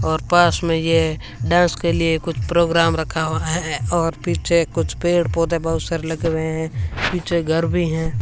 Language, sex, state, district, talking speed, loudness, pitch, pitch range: Hindi, female, Rajasthan, Bikaner, 190 wpm, -19 LUFS, 165 Hz, 160-170 Hz